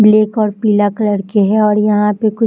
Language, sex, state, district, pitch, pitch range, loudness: Hindi, female, Bihar, Jahanabad, 210 Hz, 210-215 Hz, -13 LUFS